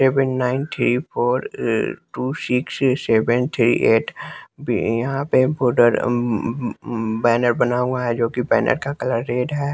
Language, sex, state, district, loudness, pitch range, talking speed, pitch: Hindi, male, Bihar, West Champaran, -20 LUFS, 120-130 Hz, 130 wpm, 125 Hz